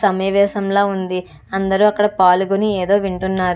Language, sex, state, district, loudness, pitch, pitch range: Telugu, female, Andhra Pradesh, Chittoor, -17 LUFS, 195 Hz, 185-200 Hz